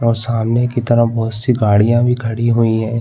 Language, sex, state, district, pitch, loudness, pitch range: Hindi, male, Chhattisgarh, Balrampur, 115 Hz, -15 LUFS, 115-120 Hz